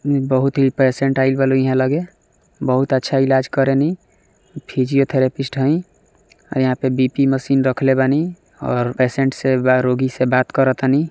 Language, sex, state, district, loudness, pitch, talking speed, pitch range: Maithili, male, Bihar, Samastipur, -17 LUFS, 135 Hz, 155 wpm, 130-135 Hz